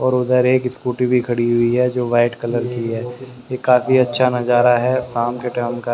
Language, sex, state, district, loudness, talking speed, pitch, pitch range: Hindi, male, Haryana, Rohtak, -17 LUFS, 220 wpm, 125 Hz, 120-125 Hz